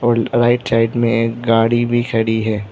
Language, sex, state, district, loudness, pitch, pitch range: Hindi, male, Arunachal Pradesh, Lower Dibang Valley, -16 LUFS, 115 Hz, 115-120 Hz